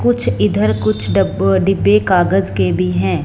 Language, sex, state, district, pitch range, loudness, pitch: Hindi, female, Punjab, Fazilka, 95-105 Hz, -15 LUFS, 95 Hz